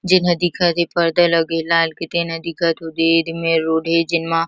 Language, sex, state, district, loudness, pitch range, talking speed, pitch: Chhattisgarhi, female, Chhattisgarh, Kabirdham, -18 LUFS, 165-170 Hz, 215 wpm, 165 Hz